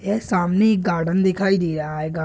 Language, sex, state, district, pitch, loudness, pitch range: Hindi, male, Bihar, Purnia, 185 Hz, -20 LUFS, 165-195 Hz